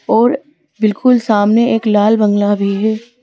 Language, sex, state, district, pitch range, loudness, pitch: Hindi, female, Madhya Pradesh, Bhopal, 210-240 Hz, -13 LUFS, 220 Hz